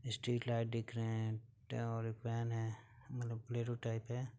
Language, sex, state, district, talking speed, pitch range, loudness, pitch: Bhojpuri, male, Uttar Pradesh, Gorakhpur, 190 wpm, 115-120 Hz, -42 LUFS, 115 Hz